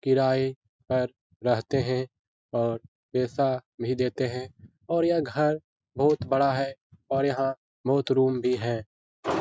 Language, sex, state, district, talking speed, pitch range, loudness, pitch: Hindi, male, Bihar, Lakhisarai, 135 wpm, 120-135 Hz, -27 LUFS, 130 Hz